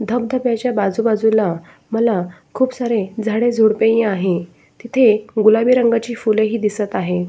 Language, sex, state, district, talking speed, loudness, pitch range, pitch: Marathi, female, Maharashtra, Sindhudurg, 155 wpm, -17 LUFS, 210-235 Hz, 220 Hz